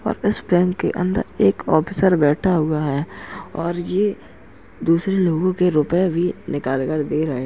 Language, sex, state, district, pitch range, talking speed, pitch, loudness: Hindi, male, Uttar Pradesh, Jalaun, 150-185 Hz, 175 wpm, 175 Hz, -20 LUFS